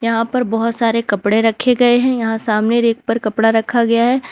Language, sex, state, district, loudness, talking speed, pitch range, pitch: Hindi, female, Jharkhand, Ranchi, -15 LUFS, 220 wpm, 225-240 Hz, 230 Hz